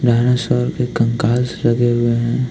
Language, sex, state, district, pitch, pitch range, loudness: Hindi, male, Uttarakhand, Tehri Garhwal, 120 Hz, 115-125 Hz, -17 LUFS